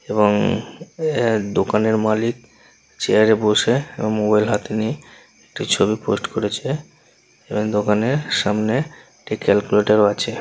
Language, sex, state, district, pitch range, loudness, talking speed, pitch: Bengali, male, West Bengal, North 24 Parganas, 105-115 Hz, -19 LUFS, 120 wpm, 110 Hz